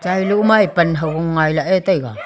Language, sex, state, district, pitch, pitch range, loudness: Wancho, female, Arunachal Pradesh, Longding, 175 Hz, 160-190 Hz, -16 LUFS